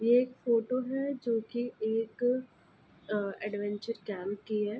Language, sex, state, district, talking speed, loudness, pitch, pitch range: Hindi, female, Uttar Pradesh, Ghazipur, 150 wpm, -33 LUFS, 225 Hz, 210-245 Hz